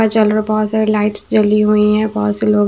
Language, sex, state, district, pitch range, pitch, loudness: Hindi, female, Maharashtra, Washim, 210-215 Hz, 215 Hz, -14 LUFS